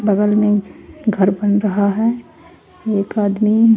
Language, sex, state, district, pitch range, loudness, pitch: Hindi, female, Haryana, Charkhi Dadri, 205-220 Hz, -17 LUFS, 210 Hz